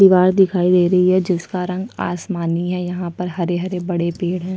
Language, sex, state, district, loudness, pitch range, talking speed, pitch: Hindi, female, Chhattisgarh, Sukma, -18 LUFS, 175-185 Hz, 195 wpm, 180 Hz